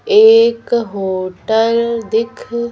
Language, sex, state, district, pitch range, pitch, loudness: Hindi, female, Madhya Pradesh, Bhopal, 220-245 Hz, 235 Hz, -14 LUFS